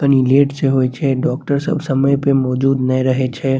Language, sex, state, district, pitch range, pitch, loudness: Maithili, male, Bihar, Saharsa, 130-140 Hz, 135 Hz, -16 LUFS